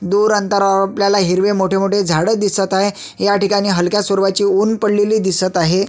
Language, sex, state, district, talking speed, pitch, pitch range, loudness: Marathi, male, Maharashtra, Sindhudurg, 175 wpm, 200 Hz, 195-205 Hz, -15 LUFS